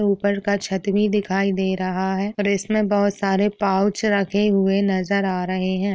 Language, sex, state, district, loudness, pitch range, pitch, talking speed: Hindi, female, Uttar Pradesh, Etah, -21 LUFS, 190-205 Hz, 200 Hz, 190 wpm